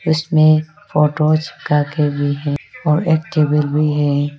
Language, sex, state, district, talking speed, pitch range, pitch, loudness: Hindi, female, Arunachal Pradesh, Lower Dibang Valley, 150 wpm, 145-155 Hz, 150 Hz, -16 LUFS